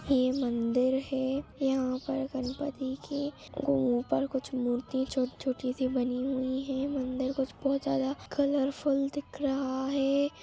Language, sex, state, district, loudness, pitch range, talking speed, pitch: Hindi, female, Bihar, Jahanabad, -31 LUFS, 260-275 Hz, 140 wpm, 265 Hz